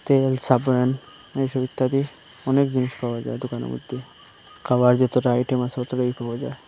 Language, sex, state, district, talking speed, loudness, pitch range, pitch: Bengali, male, Assam, Hailakandi, 160 wpm, -23 LUFS, 125-130 Hz, 130 Hz